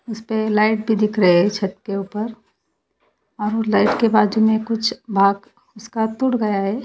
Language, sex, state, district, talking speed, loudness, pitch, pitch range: Hindi, female, Haryana, Charkhi Dadri, 185 wpm, -19 LUFS, 220 Hz, 205-225 Hz